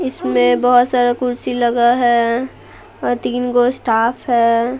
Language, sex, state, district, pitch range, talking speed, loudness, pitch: Hindi, female, Bihar, Patna, 230-245 Hz, 135 wpm, -15 LUFS, 240 Hz